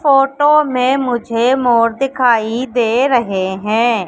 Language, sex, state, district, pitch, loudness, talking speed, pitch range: Hindi, female, Madhya Pradesh, Katni, 245 Hz, -14 LUFS, 120 wpm, 230-265 Hz